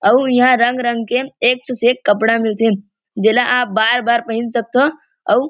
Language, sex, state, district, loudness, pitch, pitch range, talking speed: Chhattisgarhi, male, Chhattisgarh, Rajnandgaon, -15 LUFS, 240 Hz, 225-250 Hz, 175 wpm